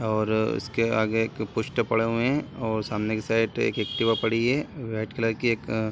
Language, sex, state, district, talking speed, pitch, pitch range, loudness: Hindi, male, Bihar, Sitamarhi, 205 wpm, 115 Hz, 110-115 Hz, -26 LUFS